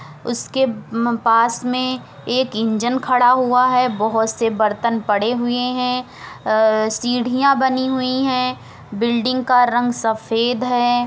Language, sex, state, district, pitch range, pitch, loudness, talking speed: Hindi, female, Uttar Pradesh, Etah, 225-255 Hz, 245 Hz, -18 LUFS, 125 wpm